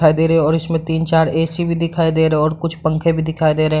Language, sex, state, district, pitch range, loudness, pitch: Hindi, male, Bihar, Madhepura, 155-165 Hz, -16 LUFS, 160 Hz